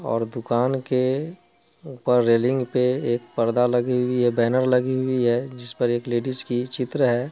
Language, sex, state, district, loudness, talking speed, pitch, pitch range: Hindi, male, Bihar, Muzaffarpur, -22 LUFS, 180 wpm, 125 Hz, 120-130 Hz